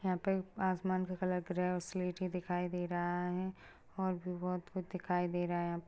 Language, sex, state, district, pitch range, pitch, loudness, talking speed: Hindi, female, Goa, North and South Goa, 180-185 Hz, 180 Hz, -38 LUFS, 225 wpm